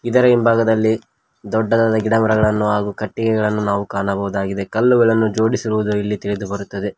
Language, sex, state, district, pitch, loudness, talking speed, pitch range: Kannada, male, Karnataka, Koppal, 110 Hz, -17 LUFS, 110 wpm, 100-110 Hz